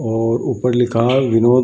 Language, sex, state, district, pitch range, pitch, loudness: Hindi, male, Bihar, Bhagalpur, 115-125 Hz, 120 Hz, -16 LUFS